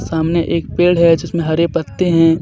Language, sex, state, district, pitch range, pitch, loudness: Hindi, male, Jharkhand, Deoghar, 165-170 Hz, 165 Hz, -15 LUFS